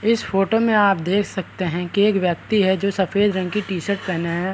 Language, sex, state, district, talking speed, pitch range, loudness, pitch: Hindi, male, Bihar, Araria, 240 wpm, 185-205 Hz, -20 LUFS, 195 Hz